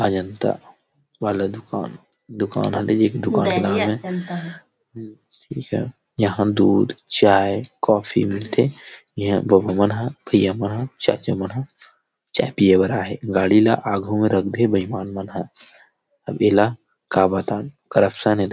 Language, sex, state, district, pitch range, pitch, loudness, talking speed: Chhattisgarhi, male, Chhattisgarh, Rajnandgaon, 100-120 Hz, 105 Hz, -20 LUFS, 135 wpm